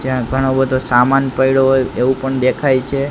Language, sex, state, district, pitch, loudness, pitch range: Gujarati, male, Gujarat, Gandhinagar, 130 Hz, -15 LUFS, 130-135 Hz